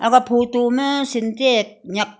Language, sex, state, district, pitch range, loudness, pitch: Wancho, female, Arunachal Pradesh, Longding, 220-255 Hz, -19 LUFS, 240 Hz